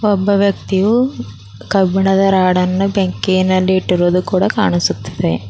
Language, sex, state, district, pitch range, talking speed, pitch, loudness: Kannada, female, Karnataka, Bidar, 180-200 Hz, 100 wpm, 190 Hz, -15 LUFS